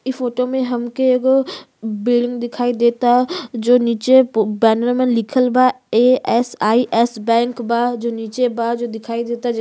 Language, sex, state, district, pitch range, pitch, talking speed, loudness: Bhojpuri, female, Uttar Pradesh, Gorakhpur, 235-255 Hz, 240 Hz, 180 wpm, -17 LUFS